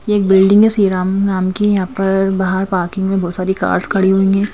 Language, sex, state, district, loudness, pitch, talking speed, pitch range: Hindi, female, Madhya Pradesh, Bhopal, -14 LUFS, 195 Hz, 240 wpm, 190-200 Hz